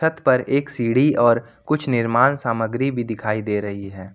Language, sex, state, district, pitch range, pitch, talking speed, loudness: Hindi, male, Jharkhand, Ranchi, 115-135 Hz, 120 Hz, 190 wpm, -20 LUFS